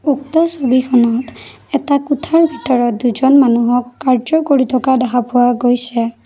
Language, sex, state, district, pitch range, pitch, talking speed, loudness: Assamese, female, Assam, Kamrup Metropolitan, 245-285 Hz, 255 Hz, 125 wpm, -14 LUFS